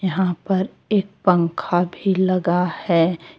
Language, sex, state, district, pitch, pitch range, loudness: Hindi, female, Jharkhand, Deoghar, 185 Hz, 175-190 Hz, -20 LUFS